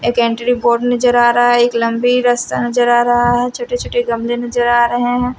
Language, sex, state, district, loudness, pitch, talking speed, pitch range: Hindi, female, Haryana, Rohtak, -14 LUFS, 240 Hz, 225 wpm, 240-245 Hz